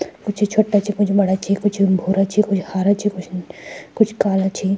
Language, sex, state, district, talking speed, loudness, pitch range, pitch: Garhwali, female, Uttarakhand, Tehri Garhwal, 200 wpm, -18 LUFS, 190-205 Hz, 200 Hz